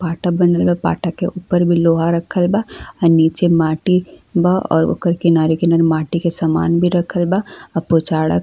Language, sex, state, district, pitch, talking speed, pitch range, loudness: Bhojpuri, female, Uttar Pradesh, Ghazipur, 170 Hz, 185 wpm, 165-175 Hz, -16 LUFS